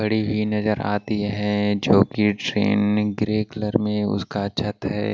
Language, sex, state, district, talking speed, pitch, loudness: Hindi, male, Maharashtra, Washim, 165 wpm, 105 Hz, -22 LUFS